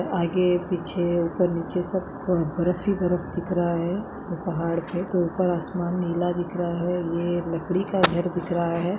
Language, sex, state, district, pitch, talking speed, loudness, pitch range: Kumaoni, female, Uttarakhand, Uttarkashi, 175 Hz, 180 wpm, -25 LUFS, 170-180 Hz